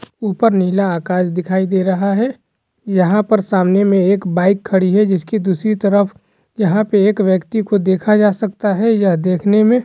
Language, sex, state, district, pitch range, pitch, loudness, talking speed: Hindi, male, Rajasthan, Nagaur, 185-215 Hz, 200 Hz, -15 LUFS, 170 wpm